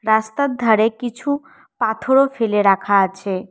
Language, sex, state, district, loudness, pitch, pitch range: Bengali, female, West Bengal, Cooch Behar, -18 LUFS, 220 Hz, 205-265 Hz